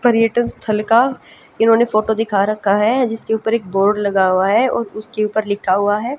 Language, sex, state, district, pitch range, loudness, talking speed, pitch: Hindi, female, Haryana, Jhajjar, 205-230 Hz, -16 LUFS, 205 wpm, 215 Hz